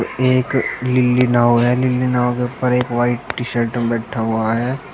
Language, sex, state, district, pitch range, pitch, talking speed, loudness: Hindi, male, Uttar Pradesh, Shamli, 120-125 Hz, 125 Hz, 195 wpm, -17 LUFS